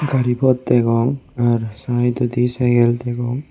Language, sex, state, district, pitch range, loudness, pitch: Chakma, male, Tripura, West Tripura, 120-130 Hz, -18 LUFS, 120 Hz